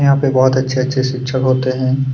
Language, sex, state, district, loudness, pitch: Hindi, male, Chhattisgarh, Kabirdham, -15 LUFS, 130 Hz